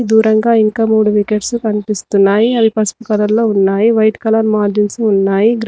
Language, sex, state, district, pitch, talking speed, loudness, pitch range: Telugu, female, Telangana, Mahabubabad, 215 Hz, 170 wpm, -13 LUFS, 210-225 Hz